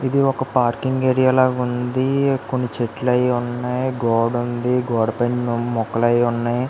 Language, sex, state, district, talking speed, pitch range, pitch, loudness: Telugu, male, Andhra Pradesh, Visakhapatnam, 150 wpm, 120-130 Hz, 125 Hz, -20 LUFS